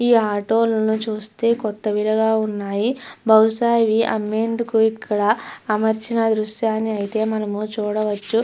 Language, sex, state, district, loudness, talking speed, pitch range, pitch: Telugu, female, Andhra Pradesh, Chittoor, -20 LUFS, 105 wpm, 215-225 Hz, 220 Hz